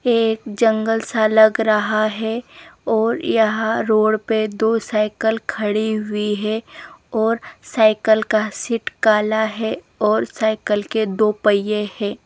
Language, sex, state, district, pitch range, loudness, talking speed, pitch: Hindi, female, Himachal Pradesh, Shimla, 215-225 Hz, -19 LUFS, 135 wpm, 220 Hz